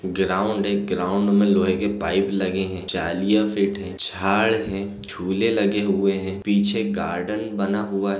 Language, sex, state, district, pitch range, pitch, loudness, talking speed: Hindi, male, Chhattisgarh, Balrampur, 95-100 Hz, 100 Hz, -22 LUFS, 170 wpm